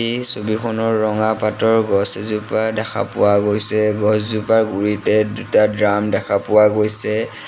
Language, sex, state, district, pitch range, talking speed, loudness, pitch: Assamese, male, Assam, Sonitpur, 105-110 Hz, 135 wpm, -16 LUFS, 105 Hz